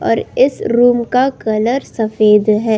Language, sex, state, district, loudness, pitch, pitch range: Hindi, female, Uttar Pradesh, Budaun, -14 LUFS, 235 Hz, 215-250 Hz